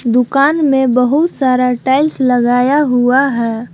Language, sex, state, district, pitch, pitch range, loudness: Hindi, female, Jharkhand, Palamu, 255 Hz, 245-275 Hz, -12 LUFS